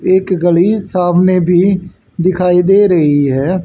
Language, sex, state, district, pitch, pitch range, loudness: Hindi, male, Haryana, Charkhi Dadri, 180 Hz, 175-185 Hz, -12 LUFS